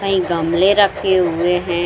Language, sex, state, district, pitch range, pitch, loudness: Hindi, female, Bihar, Saran, 175-195 Hz, 180 Hz, -16 LUFS